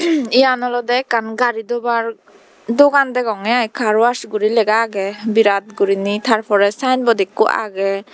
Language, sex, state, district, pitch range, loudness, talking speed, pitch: Chakma, female, Tripura, Dhalai, 210-245 Hz, -16 LUFS, 145 wpm, 225 Hz